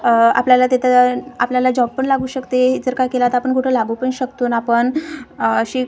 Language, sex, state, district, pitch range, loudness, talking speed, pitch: Marathi, female, Maharashtra, Gondia, 245-255 Hz, -16 LUFS, 215 wpm, 255 Hz